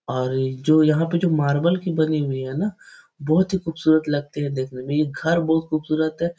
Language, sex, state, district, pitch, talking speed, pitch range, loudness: Hindi, male, Bihar, Supaul, 155 Hz, 215 wpm, 145-165 Hz, -21 LUFS